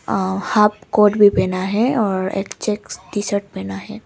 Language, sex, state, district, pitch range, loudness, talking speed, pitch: Hindi, female, Arunachal Pradesh, Papum Pare, 195-210 Hz, -18 LUFS, 165 wpm, 205 Hz